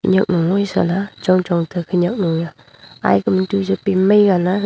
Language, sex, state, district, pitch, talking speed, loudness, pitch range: Wancho, female, Arunachal Pradesh, Longding, 185 Hz, 180 wpm, -17 LUFS, 170-195 Hz